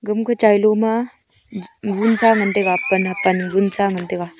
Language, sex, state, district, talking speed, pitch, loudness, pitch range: Wancho, female, Arunachal Pradesh, Longding, 150 wpm, 200 Hz, -17 LUFS, 185-220 Hz